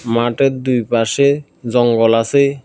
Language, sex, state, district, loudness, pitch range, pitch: Bengali, male, Tripura, South Tripura, -15 LUFS, 115-140 Hz, 120 Hz